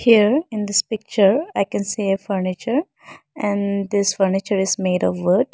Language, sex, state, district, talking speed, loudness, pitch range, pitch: English, female, Arunachal Pradesh, Lower Dibang Valley, 175 wpm, -20 LUFS, 195-215 Hz, 200 Hz